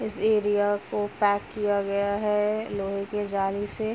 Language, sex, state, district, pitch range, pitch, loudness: Hindi, female, Uttar Pradesh, Jalaun, 200-210 Hz, 205 Hz, -26 LUFS